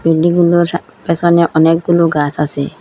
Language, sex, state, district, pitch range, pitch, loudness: Bengali, female, Assam, Hailakandi, 155-170 Hz, 170 Hz, -13 LUFS